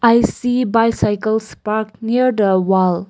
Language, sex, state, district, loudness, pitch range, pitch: English, female, Nagaland, Kohima, -17 LUFS, 205-235 Hz, 220 Hz